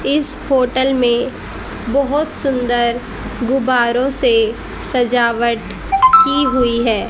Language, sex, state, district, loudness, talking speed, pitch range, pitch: Hindi, female, Haryana, Rohtak, -15 LUFS, 95 wpm, 240-275 Hz, 255 Hz